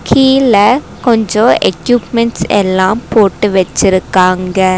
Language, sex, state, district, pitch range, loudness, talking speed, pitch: Tamil, female, Tamil Nadu, Nilgiris, 190-235 Hz, -11 LUFS, 75 wpm, 205 Hz